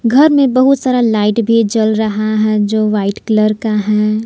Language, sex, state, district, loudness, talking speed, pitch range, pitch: Hindi, female, Jharkhand, Palamu, -13 LUFS, 185 wpm, 215-230 Hz, 220 Hz